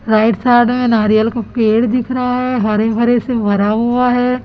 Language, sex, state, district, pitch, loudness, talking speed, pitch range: Hindi, female, Chhattisgarh, Raipur, 235 Hz, -14 LUFS, 200 wpm, 220-250 Hz